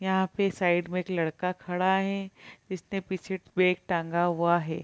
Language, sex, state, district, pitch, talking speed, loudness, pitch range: Hindi, female, Bihar, Kishanganj, 180 Hz, 185 wpm, -28 LUFS, 170-190 Hz